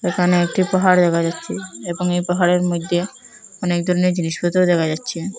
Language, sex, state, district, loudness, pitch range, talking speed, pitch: Bengali, female, Assam, Hailakandi, -19 LUFS, 175-185 Hz, 155 wpm, 180 Hz